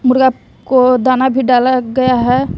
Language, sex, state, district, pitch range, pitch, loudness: Hindi, female, Bihar, West Champaran, 250-260 Hz, 255 Hz, -12 LUFS